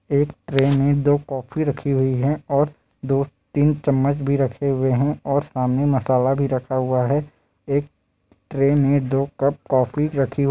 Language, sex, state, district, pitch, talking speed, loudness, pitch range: Hindi, male, Bihar, Madhepura, 140 Hz, 165 wpm, -21 LUFS, 130-145 Hz